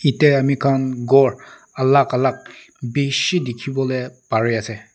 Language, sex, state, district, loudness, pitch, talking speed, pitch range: Nagamese, male, Nagaland, Dimapur, -18 LUFS, 130 Hz, 135 wpm, 125-140 Hz